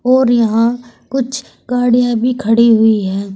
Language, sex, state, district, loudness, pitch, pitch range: Hindi, female, Uttar Pradesh, Saharanpur, -13 LUFS, 240 Hz, 225-250 Hz